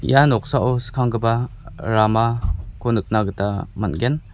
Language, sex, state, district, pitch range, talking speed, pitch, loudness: Garo, male, Meghalaya, West Garo Hills, 105-125 Hz, 95 wpm, 115 Hz, -20 LUFS